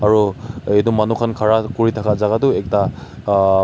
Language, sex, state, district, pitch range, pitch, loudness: Nagamese, male, Nagaland, Kohima, 105-115 Hz, 110 Hz, -17 LUFS